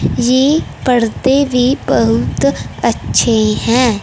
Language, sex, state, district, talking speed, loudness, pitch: Hindi, female, Punjab, Fazilka, 90 wpm, -13 LUFS, 235 Hz